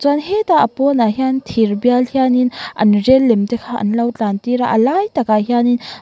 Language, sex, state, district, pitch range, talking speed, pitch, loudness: Mizo, female, Mizoram, Aizawl, 225-265 Hz, 250 wpm, 245 Hz, -15 LUFS